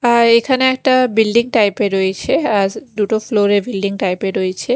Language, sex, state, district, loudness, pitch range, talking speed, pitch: Bengali, female, Chhattisgarh, Raipur, -15 LUFS, 200-240 Hz, 190 wpm, 215 Hz